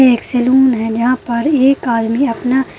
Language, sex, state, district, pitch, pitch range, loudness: Hindi, female, Maharashtra, Aurangabad, 250 Hz, 235-265 Hz, -14 LUFS